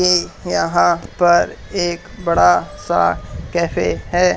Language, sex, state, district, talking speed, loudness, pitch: Hindi, male, Haryana, Charkhi Dadri, 110 wpm, -17 LUFS, 170 Hz